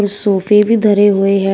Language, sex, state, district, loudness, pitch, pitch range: Hindi, female, Uttar Pradesh, Shamli, -12 LUFS, 205 Hz, 195-210 Hz